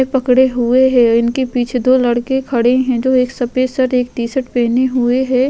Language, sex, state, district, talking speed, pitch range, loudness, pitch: Hindi, female, Uttar Pradesh, Jalaun, 205 wpm, 245-260 Hz, -14 LUFS, 255 Hz